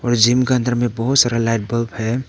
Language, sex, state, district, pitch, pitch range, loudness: Hindi, male, Arunachal Pradesh, Papum Pare, 120 Hz, 115-125 Hz, -17 LUFS